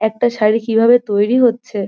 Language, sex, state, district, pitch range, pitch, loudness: Bengali, female, West Bengal, North 24 Parganas, 215-240 Hz, 225 Hz, -14 LUFS